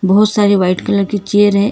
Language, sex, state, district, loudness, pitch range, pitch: Hindi, female, Karnataka, Bangalore, -13 LUFS, 195-205 Hz, 205 Hz